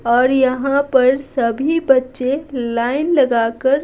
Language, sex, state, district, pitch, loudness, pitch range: Hindi, female, Bihar, Patna, 260 Hz, -16 LUFS, 245-280 Hz